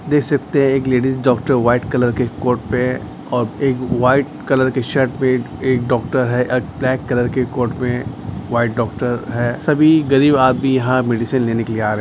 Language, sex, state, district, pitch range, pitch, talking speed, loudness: Hindi, male, Chhattisgarh, Bastar, 120-135 Hz, 125 Hz, 205 wpm, -17 LUFS